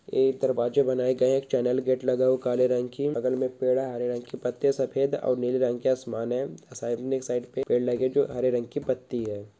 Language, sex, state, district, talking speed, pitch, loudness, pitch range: Hindi, male, Andhra Pradesh, Krishna, 250 wpm, 130 Hz, -27 LUFS, 125-130 Hz